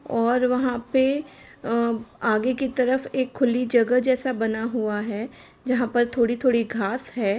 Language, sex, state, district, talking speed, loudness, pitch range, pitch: Hindi, female, Uttar Pradesh, Jalaun, 145 wpm, -23 LUFS, 230-255 Hz, 245 Hz